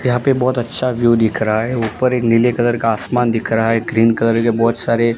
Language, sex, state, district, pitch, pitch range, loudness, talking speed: Hindi, male, Gujarat, Gandhinagar, 115 Hz, 115-120 Hz, -16 LUFS, 255 wpm